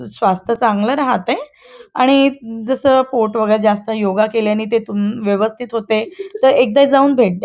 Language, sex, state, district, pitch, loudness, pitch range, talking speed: Marathi, female, Maharashtra, Chandrapur, 230 Hz, -15 LUFS, 215-265 Hz, 145 wpm